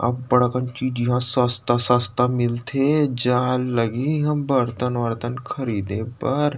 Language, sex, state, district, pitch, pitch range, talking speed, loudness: Chhattisgarhi, male, Chhattisgarh, Rajnandgaon, 125 Hz, 120-130 Hz, 135 wpm, -21 LUFS